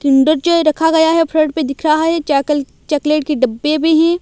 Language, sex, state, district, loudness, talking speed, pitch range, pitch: Hindi, female, Odisha, Malkangiri, -14 LUFS, 230 wpm, 295-320 Hz, 310 Hz